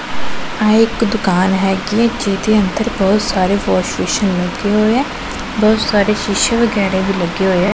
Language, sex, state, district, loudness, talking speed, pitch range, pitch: Punjabi, female, Punjab, Pathankot, -15 LUFS, 170 wpm, 195-225 Hz, 210 Hz